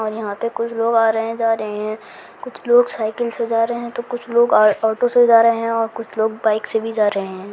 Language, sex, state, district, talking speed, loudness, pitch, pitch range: Hindi, female, Rajasthan, Churu, 270 wpm, -18 LUFS, 230 Hz, 220-235 Hz